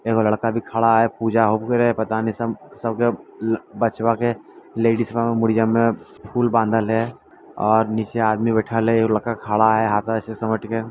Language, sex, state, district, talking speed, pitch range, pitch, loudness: Maithili, male, Bihar, Lakhisarai, 190 wpm, 110-115 Hz, 115 Hz, -20 LUFS